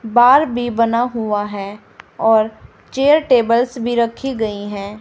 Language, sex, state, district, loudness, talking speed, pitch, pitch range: Hindi, female, Haryana, Rohtak, -16 LUFS, 145 wpm, 230 Hz, 215-245 Hz